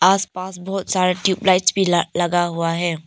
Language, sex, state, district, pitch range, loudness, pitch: Hindi, female, Arunachal Pradesh, Papum Pare, 175-190 Hz, -19 LUFS, 185 Hz